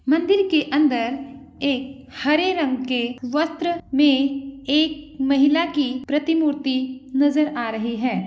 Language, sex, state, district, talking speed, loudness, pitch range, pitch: Hindi, female, Bihar, Begusarai, 125 wpm, -21 LUFS, 265-300 Hz, 280 Hz